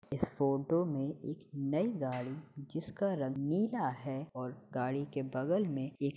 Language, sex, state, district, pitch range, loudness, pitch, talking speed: Hindi, male, Uttar Pradesh, Hamirpur, 135-160 Hz, -36 LUFS, 140 Hz, 165 wpm